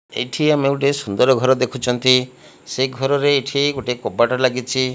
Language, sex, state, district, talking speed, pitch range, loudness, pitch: Odia, male, Odisha, Malkangiri, 145 wpm, 125-140 Hz, -18 LUFS, 130 Hz